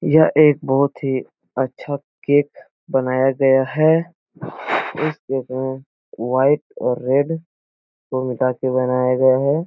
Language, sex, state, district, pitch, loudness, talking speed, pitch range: Hindi, male, Bihar, Jahanabad, 135 Hz, -19 LUFS, 125 wpm, 130-150 Hz